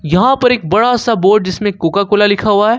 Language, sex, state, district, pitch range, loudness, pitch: Hindi, male, Jharkhand, Ranchi, 200-230 Hz, -12 LUFS, 205 Hz